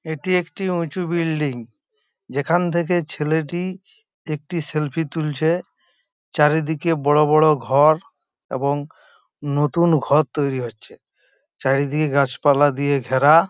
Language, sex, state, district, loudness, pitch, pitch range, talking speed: Bengali, male, West Bengal, Jhargram, -20 LUFS, 155 Hz, 145-170 Hz, 110 wpm